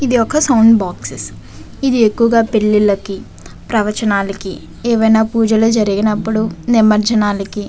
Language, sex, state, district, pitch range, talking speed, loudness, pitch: Telugu, female, Andhra Pradesh, Visakhapatnam, 200-225 Hz, 170 wpm, -14 LUFS, 215 Hz